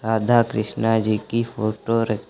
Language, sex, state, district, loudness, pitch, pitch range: Hindi, male, Uttar Pradesh, Lucknow, -21 LUFS, 110 Hz, 110-115 Hz